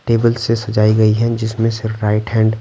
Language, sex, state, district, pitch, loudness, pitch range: Hindi, male, Bihar, Patna, 110 Hz, -16 LUFS, 110-115 Hz